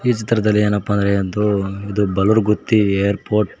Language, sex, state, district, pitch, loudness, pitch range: Kannada, male, Karnataka, Koppal, 105 Hz, -17 LUFS, 100-105 Hz